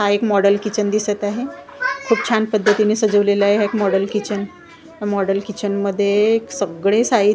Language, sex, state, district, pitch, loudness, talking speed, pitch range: Marathi, female, Maharashtra, Gondia, 210 Hz, -18 LUFS, 155 wpm, 200-220 Hz